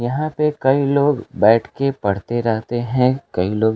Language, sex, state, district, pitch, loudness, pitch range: Hindi, male, Bihar, Kaimur, 120 Hz, -18 LUFS, 110-140 Hz